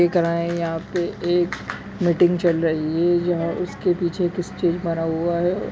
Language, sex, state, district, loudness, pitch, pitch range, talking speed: Hindi, female, Chhattisgarh, Raigarh, -22 LUFS, 175 Hz, 170-175 Hz, 155 wpm